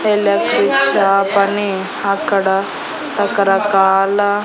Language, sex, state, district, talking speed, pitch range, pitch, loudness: Telugu, female, Andhra Pradesh, Annamaya, 80 wpm, 195-205 Hz, 195 Hz, -15 LUFS